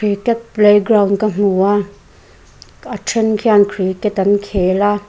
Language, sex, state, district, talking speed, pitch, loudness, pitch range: Mizo, female, Mizoram, Aizawl, 140 wpm, 205 Hz, -14 LUFS, 200-215 Hz